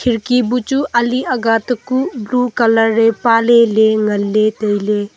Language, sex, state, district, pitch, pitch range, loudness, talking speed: Wancho, female, Arunachal Pradesh, Longding, 230 Hz, 215-245 Hz, -14 LUFS, 160 wpm